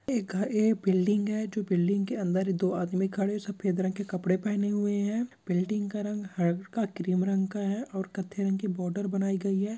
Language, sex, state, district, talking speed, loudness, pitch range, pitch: Hindi, male, Chhattisgarh, Bilaspur, 225 wpm, -29 LUFS, 190-205 Hz, 195 Hz